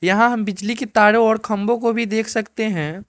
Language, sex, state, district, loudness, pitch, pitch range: Hindi, male, Arunachal Pradesh, Lower Dibang Valley, -18 LUFS, 220 Hz, 210-230 Hz